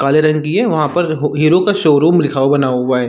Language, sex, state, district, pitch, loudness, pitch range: Hindi, male, Chhattisgarh, Sarguja, 155 Hz, -13 LUFS, 140-170 Hz